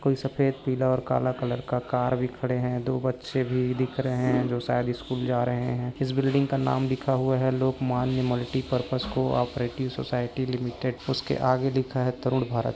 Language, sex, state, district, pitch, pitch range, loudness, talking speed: Hindi, male, Maharashtra, Sindhudurg, 130 Hz, 125-130 Hz, -27 LUFS, 195 wpm